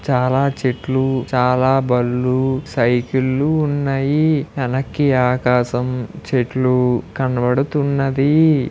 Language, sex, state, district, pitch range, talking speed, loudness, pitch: Telugu, male, Andhra Pradesh, Srikakulam, 125-140 Hz, 70 wpm, -17 LUFS, 130 Hz